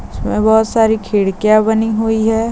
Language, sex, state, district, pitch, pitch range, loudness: Hindi, female, Maharashtra, Chandrapur, 220 Hz, 205-220 Hz, -14 LUFS